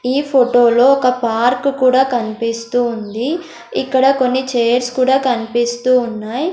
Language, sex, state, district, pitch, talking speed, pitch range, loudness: Telugu, female, Andhra Pradesh, Sri Satya Sai, 250 Hz, 120 wpm, 235-260 Hz, -15 LUFS